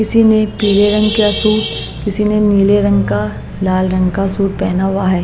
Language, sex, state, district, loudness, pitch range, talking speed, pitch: Hindi, female, Maharashtra, Mumbai Suburban, -14 LUFS, 185-210 Hz, 205 wpm, 200 Hz